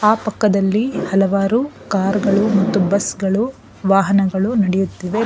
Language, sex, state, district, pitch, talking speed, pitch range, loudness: Kannada, female, Karnataka, Bangalore, 200 Hz, 115 wpm, 195-215 Hz, -17 LUFS